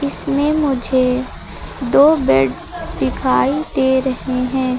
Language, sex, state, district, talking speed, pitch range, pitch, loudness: Hindi, female, Uttar Pradesh, Lucknow, 100 wpm, 250-280 Hz, 260 Hz, -16 LUFS